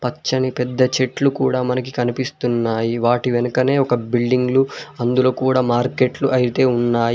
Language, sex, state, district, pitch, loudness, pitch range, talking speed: Telugu, male, Telangana, Mahabubabad, 125 Hz, -18 LUFS, 120-130 Hz, 125 wpm